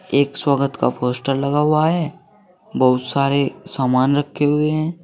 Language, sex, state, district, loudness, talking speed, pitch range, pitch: Hindi, male, Uttar Pradesh, Saharanpur, -18 LUFS, 155 wpm, 140-160 Hz, 145 Hz